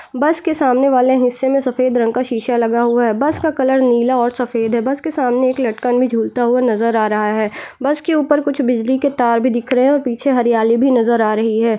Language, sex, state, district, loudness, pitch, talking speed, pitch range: Hindi, female, Chhattisgarh, Jashpur, -15 LUFS, 250 Hz, 255 wpm, 235-270 Hz